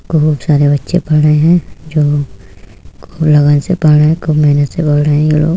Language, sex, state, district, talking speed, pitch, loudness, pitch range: Hindi, female, Uttar Pradesh, Budaun, 225 wpm, 150 Hz, -11 LUFS, 145-155 Hz